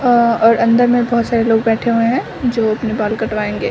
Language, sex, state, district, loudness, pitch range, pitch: Hindi, female, Bihar, Samastipur, -15 LUFS, 225-240 Hz, 230 Hz